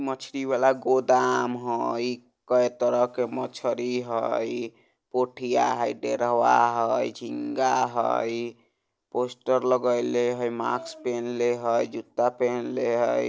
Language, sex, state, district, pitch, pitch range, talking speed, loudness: Bajjika, male, Bihar, Vaishali, 125 Hz, 120-125 Hz, 110 wpm, -26 LUFS